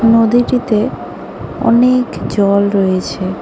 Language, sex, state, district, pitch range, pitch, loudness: Bengali, female, West Bengal, Cooch Behar, 200-245 Hz, 225 Hz, -13 LUFS